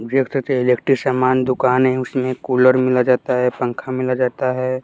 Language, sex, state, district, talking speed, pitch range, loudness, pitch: Hindi, male, Bihar, West Champaran, 160 wpm, 125-130 Hz, -17 LUFS, 130 Hz